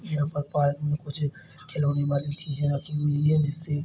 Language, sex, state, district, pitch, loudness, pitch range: Hindi, male, Chhattisgarh, Bilaspur, 145 Hz, -27 LUFS, 145-150 Hz